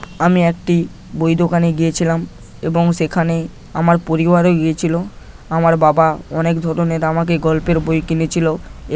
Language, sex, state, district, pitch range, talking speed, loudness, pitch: Bengali, male, West Bengal, Paschim Medinipur, 160-170 Hz, 120 wpm, -16 LUFS, 165 Hz